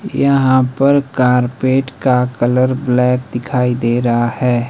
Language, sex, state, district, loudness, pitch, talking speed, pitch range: Hindi, male, Himachal Pradesh, Shimla, -14 LUFS, 125 Hz, 130 wpm, 125-130 Hz